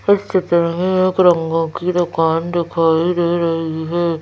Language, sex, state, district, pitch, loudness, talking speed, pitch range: Hindi, female, Madhya Pradesh, Bhopal, 170 Hz, -17 LUFS, 155 wpm, 165-180 Hz